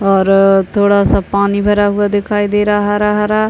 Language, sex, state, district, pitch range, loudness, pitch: Hindi, male, Bihar, Purnia, 200-205 Hz, -12 LUFS, 205 Hz